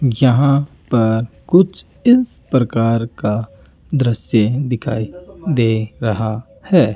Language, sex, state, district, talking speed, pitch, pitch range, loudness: Hindi, male, Rajasthan, Jaipur, 95 wpm, 115 Hz, 110-140 Hz, -17 LUFS